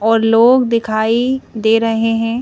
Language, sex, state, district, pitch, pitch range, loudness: Hindi, female, Madhya Pradesh, Bhopal, 225 Hz, 225-235 Hz, -14 LUFS